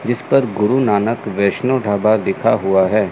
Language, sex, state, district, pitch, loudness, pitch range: Hindi, male, Chandigarh, Chandigarh, 110 Hz, -16 LUFS, 100-125 Hz